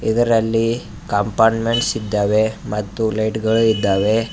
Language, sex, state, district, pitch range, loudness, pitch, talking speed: Kannada, male, Karnataka, Bidar, 105-115 Hz, -18 LUFS, 110 Hz, 85 wpm